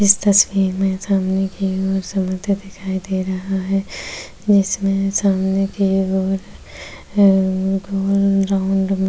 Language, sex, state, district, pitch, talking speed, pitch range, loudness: Hindi, female, Uttar Pradesh, Jyotiba Phule Nagar, 195 Hz, 75 wpm, 190-195 Hz, -18 LUFS